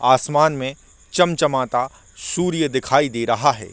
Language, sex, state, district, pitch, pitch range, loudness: Hindi, male, Chhattisgarh, Korba, 135 Hz, 125-155 Hz, -19 LUFS